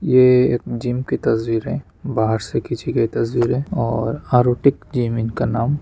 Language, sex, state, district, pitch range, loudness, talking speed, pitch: Hindi, male, West Bengal, Jalpaiguri, 115-125 Hz, -19 LUFS, 175 wpm, 120 Hz